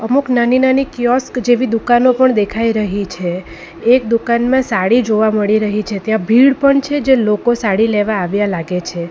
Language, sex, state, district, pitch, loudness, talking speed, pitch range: Gujarati, female, Gujarat, Valsad, 230 Hz, -14 LUFS, 185 wpm, 210-250 Hz